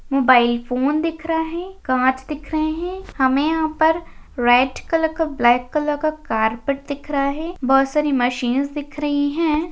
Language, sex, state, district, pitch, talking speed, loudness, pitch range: Hindi, female, Maharashtra, Pune, 295 Hz, 175 wpm, -20 LUFS, 260-315 Hz